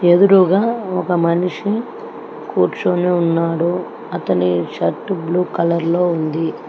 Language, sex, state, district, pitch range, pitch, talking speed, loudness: Telugu, female, Telangana, Hyderabad, 165-190 Hz, 175 Hz, 100 wpm, -17 LUFS